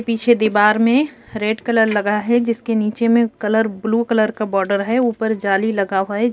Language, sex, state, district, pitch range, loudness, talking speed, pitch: Hindi, female, Uttar Pradesh, Jyotiba Phule Nagar, 210-230 Hz, -17 LUFS, 200 wpm, 220 Hz